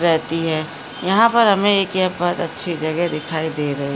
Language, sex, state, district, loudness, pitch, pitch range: Hindi, female, Uttarakhand, Uttarkashi, -17 LUFS, 170 Hz, 155-190 Hz